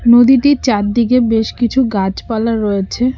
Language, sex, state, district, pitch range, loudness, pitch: Bengali, female, West Bengal, Cooch Behar, 220-250 Hz, -13 LUFS, 235 Hz